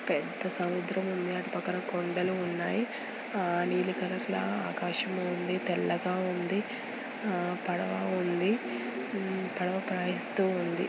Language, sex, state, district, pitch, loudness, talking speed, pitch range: Telugu, female, Andhra Pradesh, Guntur, 185 Hz, -32 LUFS, 110 wpm, 180-190 Hz